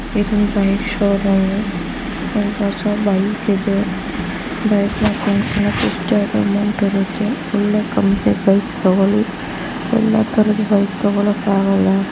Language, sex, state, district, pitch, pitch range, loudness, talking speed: Kannada, female, Karnataka, Raichur, 205 Hz, 200-210 Hz, -17 LUFS, 85 wpm